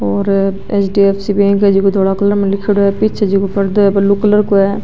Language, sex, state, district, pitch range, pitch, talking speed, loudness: Marwari, female, Rajasthan, Nagaur, 195-205 Hz, 200 Hz, 225 wpm, -13 LUFS